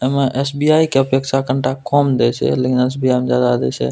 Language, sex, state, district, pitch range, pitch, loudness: Maithili, male, Bihar, Purnia, 125-135 Hz, 130 Hz, -16 LUFS